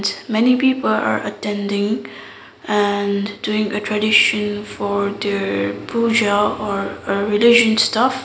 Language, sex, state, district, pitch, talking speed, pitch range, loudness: English, female, Sikkim, Gangtok, 205 Hz, 110 wpm, 200-220 Hz, -18 LUFS